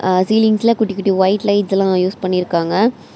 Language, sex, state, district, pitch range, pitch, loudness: Tamil, female, Tamil Nadu, Kanyakumari, 185-215 Hz, 195 Hz, -15 LUFS